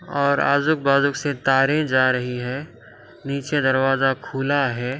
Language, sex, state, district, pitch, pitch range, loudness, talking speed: Hindi, male, Telangana, Karimnagar, 135 Hz, 130-140 Hz, -20 LUFS, 130 wpm